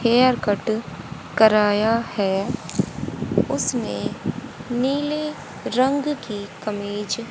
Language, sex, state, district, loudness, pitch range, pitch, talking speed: Hindi, female, Haryana, Jhajjar, -22 LUFS, 205-255 Hz, 225 Hz, 75 wpm